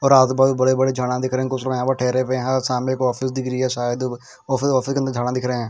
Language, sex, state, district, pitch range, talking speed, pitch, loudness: Hindi, male, Bihar, Patna, 125-130 Hz, 315 wpm, 130 Hz, -20 LUFS